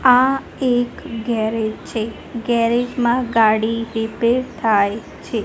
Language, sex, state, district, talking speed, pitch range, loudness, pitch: Gujarati, female, Gujarat, Gandhinagar, 110 wpm, 220-245 Hz, -19 LUFS, 230 Hz